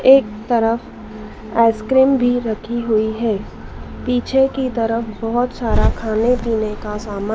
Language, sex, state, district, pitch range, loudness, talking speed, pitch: Hindi, female, Madhya Pradesh, Dhar, 220-245 Hz, -18 LUFS, 130 wpm, 230 Hz